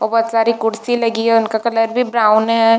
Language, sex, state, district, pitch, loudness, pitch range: Hindi, female, Bihar, Darbhanga, 225 Hz, -15 LUFS, 225-230 Hz